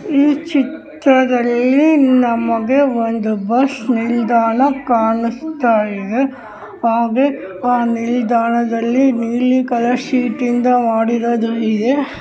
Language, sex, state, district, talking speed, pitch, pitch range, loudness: Kannada, female, Karnataka, Gulbarga, 80 wpm, 245 Hz, 230-265 Hz, -15 LUFS